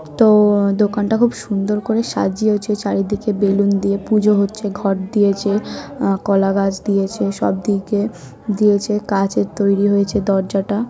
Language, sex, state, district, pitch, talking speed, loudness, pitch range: Bengali, female, West Bengal, North 24 Parganas, 200 Hz, 125 wpm, -17 LUFS, 195-210 Hz